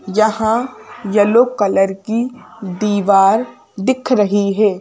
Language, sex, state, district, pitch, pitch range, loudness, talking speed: Hindi, female, Madhya Pradesh, Bhopal, 210 Hz, 195-230 Hz, -15 LUFS, 100 wpm